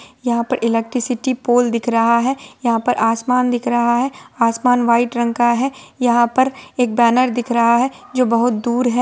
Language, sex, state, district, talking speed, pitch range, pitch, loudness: Hindi, female, Bihar, Supaul, 195 wpm, 235-255 Hz, 245 Hz, -17 LUFS